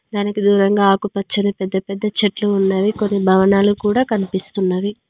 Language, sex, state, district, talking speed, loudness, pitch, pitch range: Telugu, female, Telangana, Mahabubabad, 140 wpm, -17 LUFS, 200 Hz, 195-205 Hz